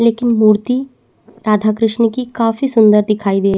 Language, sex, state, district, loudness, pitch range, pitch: Hindi, female, Chhattisgarh, Bastar, -14 LUFS, 215-235 Hz, 225 Hz